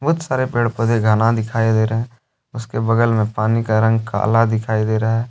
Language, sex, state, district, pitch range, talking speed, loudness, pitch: Hindi, male, Jharkhand, Deoghar, 110-115 Hz, 225 wpm, -18 LUFS, 115 Hz